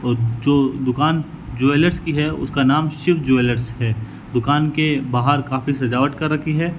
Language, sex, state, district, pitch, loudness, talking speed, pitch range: Hindi, male, Rajasthan, Bikaner, 140 Hz, -19 LUFS, 170 wpm, 125-155 Hz